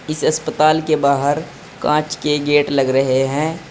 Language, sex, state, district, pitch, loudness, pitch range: Hindi, male, Uttar Pradesh, Saharanpur, 145 Hz, -17 LUFS, 140-155 Hz